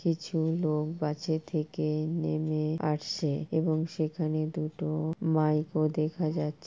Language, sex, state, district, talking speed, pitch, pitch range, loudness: Bengali, female, West Bengal, Purulia, 115 wpm, 155 Hz, 155-160 Hz, -30 LUFS